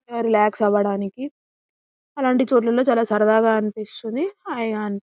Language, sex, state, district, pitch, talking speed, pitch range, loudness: Telugu, female, Telangana, Karimnagar, 225 Hz, 85 wpm, 210-255 Hz, -20 LUFS